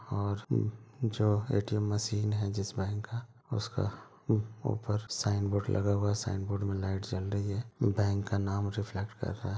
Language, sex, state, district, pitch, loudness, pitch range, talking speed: Hindi, male, Bihar, Madhepura, 105 Hz, -33 LUFS, 100-110 Hz, 180 wpm